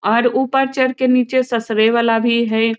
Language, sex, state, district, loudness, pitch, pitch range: Hindi, female, Bihar, Muzaffarpur, -16 LUFS, 235 Hz, 225-255 Hz